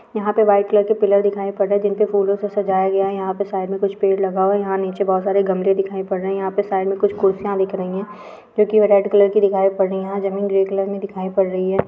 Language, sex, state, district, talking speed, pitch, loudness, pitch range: Hindi, female, Bihar, Araria, 310 wpm, 195 Hz, -18 LUFS, 195-205 Hz